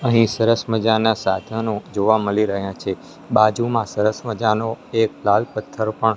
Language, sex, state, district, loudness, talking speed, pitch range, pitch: Gujarati, male, Gujarat, Gandhinagar, -20 LUFS, 145 wpm, 105-115 Hz, 110 Hz